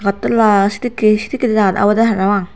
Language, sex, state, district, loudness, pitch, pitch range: Chakma, female, Tripura, Unakoti, -14 LUFS, 210 Hz, 200-225 Hz